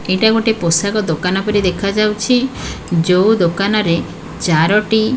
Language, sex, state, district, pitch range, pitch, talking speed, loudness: Odia, female, Odisha, Khordha, 180-215 Hz, 200 Hz, 115 wpm, -15 LUFS